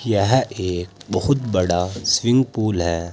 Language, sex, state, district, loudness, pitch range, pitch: Hindi, male, Uttar Pradesh, Saharanpur, -20 LUFS, 90-120 Hz, 100 Hz